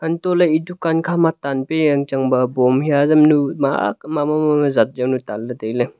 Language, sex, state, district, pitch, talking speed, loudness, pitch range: Wancho, male, Arunachal Pradesh, Longding, 145 Hz, 160 wpm, -17 LUFS, 130-160 Hz